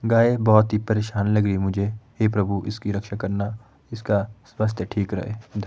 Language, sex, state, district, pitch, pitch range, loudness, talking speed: Hindi, male, Himachal Pradesh, Shimla, 105 Hz, 100-110 Hz, -23 LUFS, 180 wpm